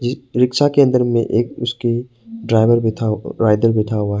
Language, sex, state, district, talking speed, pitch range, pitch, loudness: Hindi, male, Arunachal Pradesh, Papum Pare, 115 wpm, 110-125 Hz, 115 Hz, -17 LUFS